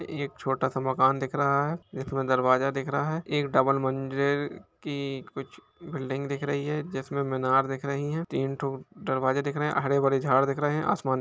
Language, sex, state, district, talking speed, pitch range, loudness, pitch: Hindi, male, Bihar, Gopalganj, 215 wpm, 135-145 Hz, -27 LUFS, 140 Hz